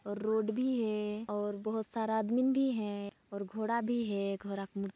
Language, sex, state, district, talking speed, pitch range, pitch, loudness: Hindi, female, Chhattisgarh, Sarguja, 180 wpm, 200-230 Hz, 215 Hz, -34 LUFS